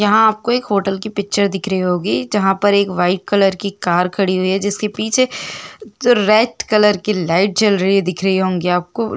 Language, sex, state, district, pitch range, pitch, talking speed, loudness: Hindi, female, Jharkhand, Jamtara, 190-215 Hz, 200 Hz, 205 wpm, -16 LUFS